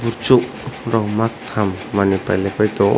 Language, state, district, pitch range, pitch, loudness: Kokborok, Tripura, West Tripura, 100-115 Hz, 105 Hz, -18 LUFS